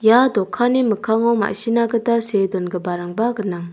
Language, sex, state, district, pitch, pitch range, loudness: Garo, female, Meghalaya, South Garo Hills, 220 Hz, 190-235 Hz, -19 LUFS